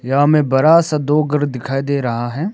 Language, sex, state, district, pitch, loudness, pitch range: Hindi, male, Arunachal Pradesh, Papum Pare, 145 Hz, -15 LUFS, 135-150 Hz